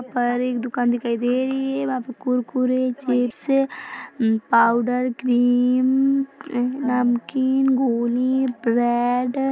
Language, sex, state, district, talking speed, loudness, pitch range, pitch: Hindi, female, Chhattisgarh, Bilaspur, 100 wpm, -21 LUFS, 245-265 Hz, 250 Hz